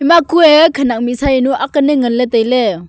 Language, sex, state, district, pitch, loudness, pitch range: Wancho, female, Arunachal Pradesh, Longding, 265 Hz, -11 LUFS, 245-290 Hz